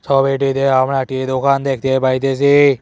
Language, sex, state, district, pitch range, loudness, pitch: Bengali, male, West Bengal, Cooch Behar, 130-140 Hz, -15 LUFS, 135 Hz